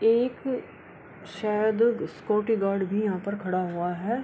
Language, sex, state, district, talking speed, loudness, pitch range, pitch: Hindi, female, Bihar, Kishanganj, 155 wpm, -27 LUFS, 185-225 Hz, 210 Hz